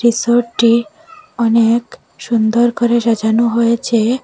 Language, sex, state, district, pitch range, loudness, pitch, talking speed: Bengali, female, Assam, Hailakandi, 230-240 Hz, -14 LUFS, 235 Hz, 85 wpm